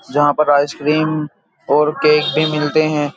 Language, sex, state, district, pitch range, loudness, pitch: Hindi, male, Uttar Pradesh, Jyotiba Phule Nagar, 145-155 Hz, -15 LUFS, 150 Hz